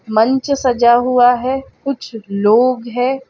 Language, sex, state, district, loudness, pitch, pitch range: Hindi, female, Chhattisgarh, Bilaspur, -15 LUFS, 245 Hz, 235-260 Hz